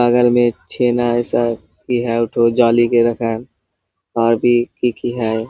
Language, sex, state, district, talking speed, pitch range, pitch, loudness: Hindi, male, Jharkhand, Sahebganj, 100 wpm, 115-120 Hz, 120 Hz, -16 LUFS